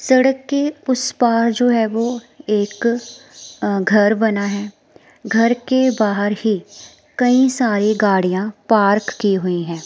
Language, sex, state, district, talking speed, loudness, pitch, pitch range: Hindi, female, Himachal Pradesh, Shimla, 140 wpm, -17 LUFS, 225 Hz, 205-245 Hz